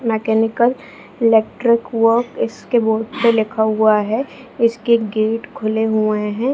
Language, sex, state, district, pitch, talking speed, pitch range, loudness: Hindi, female, Bihar, Jahanabad, 225 Hz, 140 wpm, 220-235 Hz, -17 LUFS